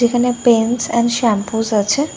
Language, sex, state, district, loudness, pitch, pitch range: Bengali, female, West Bengal, Dakshin Dinajpur, -16 LUFS, 235 Hz, 225-245 Hz